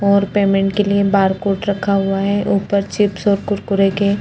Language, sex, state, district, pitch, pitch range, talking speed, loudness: Hindi, female, Chhattisgarh, Korba, 200 Hz, 195-200 Hz, 185 wpm, -16 LUFS